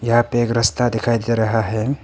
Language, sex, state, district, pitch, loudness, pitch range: Hindi, male, Arunachal Pradesh, Papum Pare, 115 Hz, -18 LUFS, 115-120 Hz